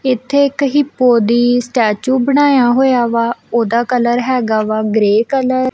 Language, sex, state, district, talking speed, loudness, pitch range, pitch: Punjabi, female, Punjab, Kapurthala, 165 wpm, -13 LUFS, 230-265 Hz, 245 Hz